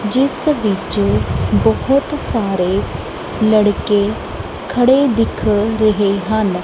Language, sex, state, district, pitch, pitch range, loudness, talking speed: Punjabi, female, Punjab, Kapurthala, 210 Hz, 195-245 Hz, -16 LUFS, 80 wpm